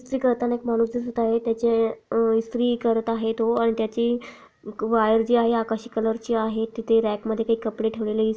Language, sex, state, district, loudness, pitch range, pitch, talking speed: Marathi, female, Maharashtra, Pune, -23 LUFS, 225-235 Hz, 230 Hz, 200 wpm